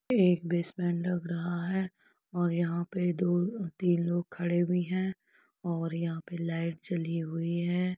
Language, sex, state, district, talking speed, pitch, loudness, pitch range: Hindi, female, Uttar Pradesh, Etah, 160 wpm, 175 Hz, -31 LUFS, 170-180 Hz